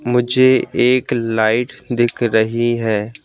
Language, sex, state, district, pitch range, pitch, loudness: Hindi, male, Madhya Pradesh, Bhopal, 110-125 Hz, 120 Hz, -16 LUFS